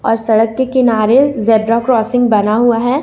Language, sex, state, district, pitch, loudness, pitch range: Hindi, female, Jharkhand, Ranchi, 230 Hz, -12 LUFS, 220-255 Hz